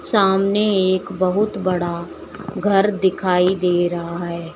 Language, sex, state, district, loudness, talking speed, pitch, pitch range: Hindi, female, Uttar Pradesh, Shamli, -19 LUFS, 120 wpm, 185 Hz, 175-195 Hz